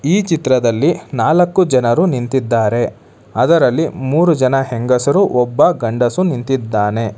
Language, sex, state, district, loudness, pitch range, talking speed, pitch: Kannada, male, Karnataka, Bangalore, -14 LUFS, 120-165 Hz, 100 wpm, 130 Hz